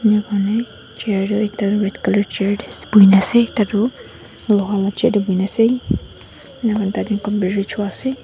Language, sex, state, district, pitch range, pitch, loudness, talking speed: Nagamese, female, Nagaland, Dimapur, 200-220 Hz, 205 Hz, -17 LUFS, 195 wpm